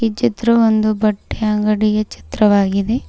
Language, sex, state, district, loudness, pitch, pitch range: Kannada, female, Karnataka, Bidar, -16 LUFS, 215 Hz, 210-225 Hz